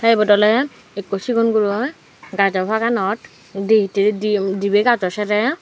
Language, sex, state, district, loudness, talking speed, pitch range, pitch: Chakma, female, Tripura, Dhalai, -18 LUFS, 150 wpm, 200-230 Hz, 210 Hz